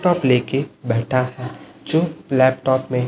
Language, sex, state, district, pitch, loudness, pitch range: Hindi, male, Chhattisgarh, Raipur, 130 Hz, -19 LUFS, 125-140 Hz